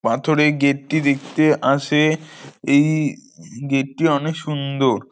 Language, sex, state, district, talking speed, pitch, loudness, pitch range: Bengali, male, West Bengal, North 24 Parganas, 130 wpm, 145 Hz, -19 LUFS, 140-155 Hz